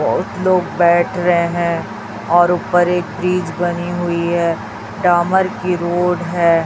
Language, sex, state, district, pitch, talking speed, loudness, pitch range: Hindi, female, Chhattisgarh, Raipur, 175 Hz, 145 wpm, -16 LUFS, 170-180 Hz